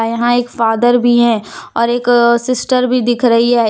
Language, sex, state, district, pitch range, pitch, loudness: Hindi, female, Jharkhand, Deoghar, 235-245 Hz, 240 Hz, -13 LUFS